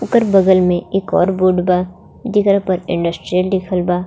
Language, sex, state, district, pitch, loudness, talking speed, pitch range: Bhojpuri, female, Jharkhand, Palamu, 185 Hz, -15 LUFS, 175 wpm, 180-195 Hz